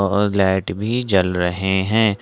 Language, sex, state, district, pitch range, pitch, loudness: Hindi, male, Jharkhand, Ranchi, 95-105 Hz, 100 Hz, -19 LUFS